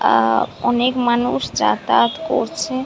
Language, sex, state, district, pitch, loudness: Bengali, female, West Bengal, Dakshin Dinajpur, 235 Hz, -18 LUFS